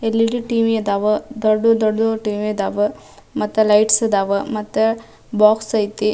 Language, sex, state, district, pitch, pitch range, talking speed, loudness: Kannada, female, Karnataka, Dharwad, 215 Hz, 210-225 Hz, 155 wpm, -18 LUFS